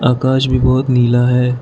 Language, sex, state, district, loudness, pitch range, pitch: Hindi, male, Arunachal Pradesh, Lower Dibang Valley, -13 LUFS, 125-130 Hz, 125 Hz